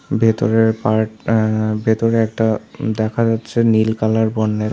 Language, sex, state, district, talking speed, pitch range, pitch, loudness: Bengali, male, Tripura, South Tripura, 140 wpm, 110-115 Hz, 110 Hz, -17 LUFS